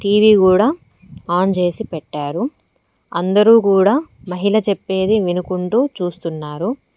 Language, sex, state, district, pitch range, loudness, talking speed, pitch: Telugu, female, Telangana, Mahabubabad, 180-215 Hz, -16 LUFS, 95 wpm, 190 Hz